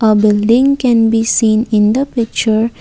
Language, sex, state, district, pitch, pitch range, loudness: English, female, Assam, Kamrup Metropolitan, 225 Hz, 220-235 Hz, -12 LUFS